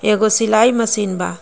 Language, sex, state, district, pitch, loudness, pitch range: Bhojpuri, female, Jharkhand, Palamu, 220 Hz, -15 LUFS, 210-225 Hz